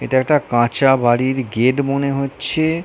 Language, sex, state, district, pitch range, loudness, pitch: Bengali, male, West Bengal, North 24 Parganas, 125-140 Hz, -17 LUFS, 135 Hz